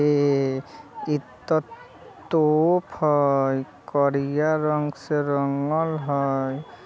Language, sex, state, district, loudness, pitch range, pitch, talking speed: Bajjika, male, Bihar, Vaishali, -23 LUFS, 140-155 Hz, 145 Hz, 95 wpm